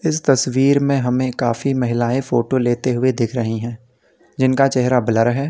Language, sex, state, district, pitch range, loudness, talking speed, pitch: Hindi, male, Uttar Pradesh, Lalitpur, 120-135 Hz, -18 LUFS, 175 wpm, 125 Hz